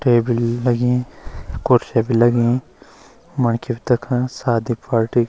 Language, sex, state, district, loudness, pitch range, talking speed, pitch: Garhwali, male, Uttarakhand, Uttarkashi, -19 LUFS, 115-125 Hz, 135 wpm, 120 Hz